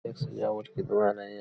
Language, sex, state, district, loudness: Hindi, male, Uttar Pradesh, Hamirpur, -30 LUFS